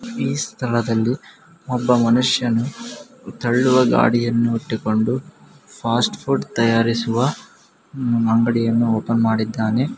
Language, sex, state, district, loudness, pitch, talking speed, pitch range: Kannada, male, Karnataka, Mysore, -19 LUFS, 120 Hz, 80 wpm, 115-125 Hz